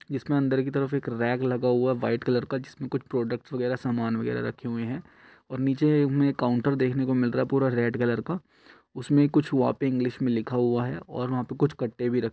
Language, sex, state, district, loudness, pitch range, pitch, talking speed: Hindi, male, Uttar Pradesh, Etah, -26 LUFS, 120-135 Hz, 130 Hz, 240 wpm